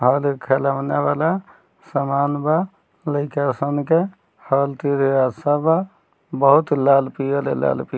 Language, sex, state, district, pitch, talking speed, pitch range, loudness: Bhojpuri, male, Bihar, Muzaffarpur, 140 Hz, 120 wpm, 135-155 Hz, -20 LUFS